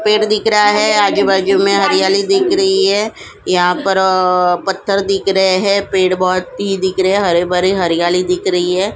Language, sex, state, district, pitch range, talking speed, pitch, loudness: Hindi, female, Goa, North and South Goa, 185-205 Hz, 200 wpm, 195 Hz, -13 LUFS